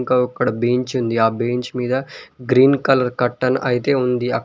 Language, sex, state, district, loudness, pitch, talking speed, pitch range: Telugu, male, Telangana, Mahabubabad, -18 LUFS, 125 Hz, 160 wpm, 125-130 Hz